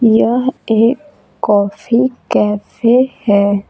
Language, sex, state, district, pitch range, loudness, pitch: Hindi, female, Bihar, Patna, 205-255 Hz, -14 LUFS, 230 Hz